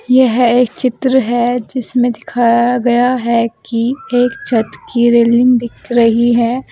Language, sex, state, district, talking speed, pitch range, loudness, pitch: Hindi, female, Uttar Pradesh, Saharanpur, 145 wpm, 235-250 Hz, -13 LUFS, 240 Hz